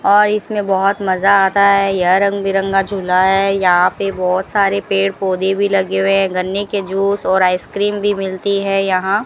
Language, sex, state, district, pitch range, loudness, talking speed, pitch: Hindi, female, Rajasthan, Bikaner, 190-200 Hz, -15 LUFS, 200 wpm, 195 Hz